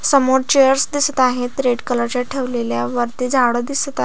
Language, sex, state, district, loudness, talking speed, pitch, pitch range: Marathi, female, Maharashtra, Aurangabad, -17 LUFS, 165 wpm, 255 Hz, 245-270 Hz